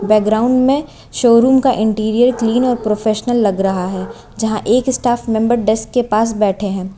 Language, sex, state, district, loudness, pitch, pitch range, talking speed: Hindi, female, Uttar Pradesh, Lucknow, -15 LUFS, 220 Hz, 215-245 Hz, 170 wpm